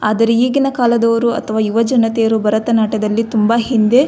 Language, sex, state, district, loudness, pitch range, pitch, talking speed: Kannada, female, Karnataka, Belgaum, -14 LUFS, 220-235 Hz, 230 Hz, 130 wpm